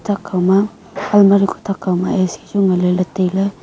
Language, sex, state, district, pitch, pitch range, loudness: Wancho, female, Arunachal Pradesh, Longding, 195 Hz, 185-200 Hz, -16 LUFS